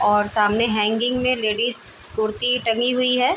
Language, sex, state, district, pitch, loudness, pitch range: Hindi, female, Chhattisgarh, Raigarh, 230 Hz, -19 LUFS, 215-250 Hz